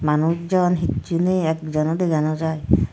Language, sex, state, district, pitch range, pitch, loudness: Chakma, female, Tripura, Dhalai, 155-175 Hz, 160 Hz, -21 LUFS